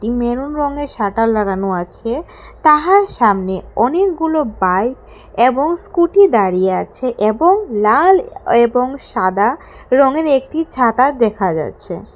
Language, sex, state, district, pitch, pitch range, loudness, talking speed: Bengali, female, Tripura, West Tripura, 250 Hz, 215-315 Hz, -15 LUFS, 115 wpm